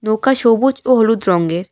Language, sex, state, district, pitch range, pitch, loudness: Bengali, female, West Bengal, Alipurduar, 190-255 Hz, 225 Hz, -14 LUFS